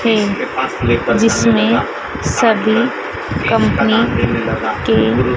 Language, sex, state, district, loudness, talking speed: Hindi, female, Madhya Pradesh, Dhar, -15 LUFS, 55 wpm